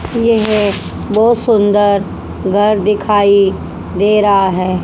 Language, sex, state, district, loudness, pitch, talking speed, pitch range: Hindi, female, Haryana, Charkhi Dadri, -12 LUFS, 205 Hz, 100 wpm, 200-215 Hz